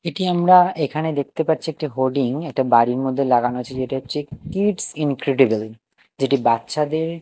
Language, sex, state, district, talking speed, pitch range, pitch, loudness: Bengali, male, Odisha, Nuapada, 150 wpm, 130-160 Hz, 140 Hz, -20 LUFS